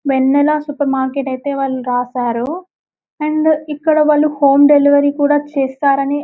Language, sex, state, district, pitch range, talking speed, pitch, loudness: Telugu, female, Telangana, Karimnagar, 270-300 Hz, 135 wpm, 285 Hz, -14 LUFS